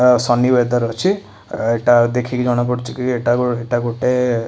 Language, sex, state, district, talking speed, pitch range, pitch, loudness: Odia, male, Odisha, Khordha, 175 wpm, 120-125 Hz, 120 Hz, -17 LUFS